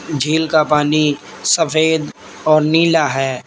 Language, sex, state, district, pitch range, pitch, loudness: Hindi, male, Uttar Pradesh, Lalitpur, 150-160 Hz, 155 Hz, -15 LUFS